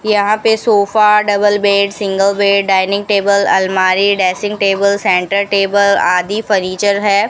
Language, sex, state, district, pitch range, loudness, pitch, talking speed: Hindi, female, Rajasthan, Bikaner, 195-205 Hz, -12 LUFS, 200 Hz, 140 wpm